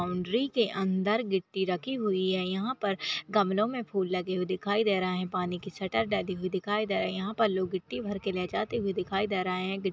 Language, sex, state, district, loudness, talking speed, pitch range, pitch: Hindi, female, Maharashtra, Aurangabad, -30 LUFS, 240 wpm, 185-210 Hz, 195 Hz